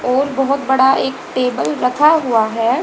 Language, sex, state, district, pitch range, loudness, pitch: Hindi, female, Haryana, Jhajjar, 250-275 Hz, -15 LUFS, 265 Hz